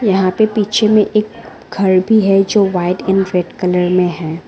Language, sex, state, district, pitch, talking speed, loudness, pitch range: Hindi, female, Arunachal Pradesh, Lower Dibang Valley, 195 Hz, 200 wpm, -14 LUFS, 180-215 Hz